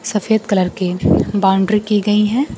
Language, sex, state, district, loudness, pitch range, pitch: Hindi, female, Bihar, Kaimur, -16 LUFS, 190-210 Hz, 205 Hz